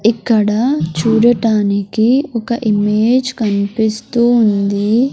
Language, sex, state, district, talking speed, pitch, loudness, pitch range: Telugu, male, Andhra Pradesh, Sri Satya Sai, 70 wpm, 220 Hz, -14 LUFS, 205-235 Hz